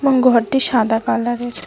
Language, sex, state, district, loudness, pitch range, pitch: Bengali, female, West Bengal, Cooch Behar, -16 LUFS, 235-265 Hz, 245 Hz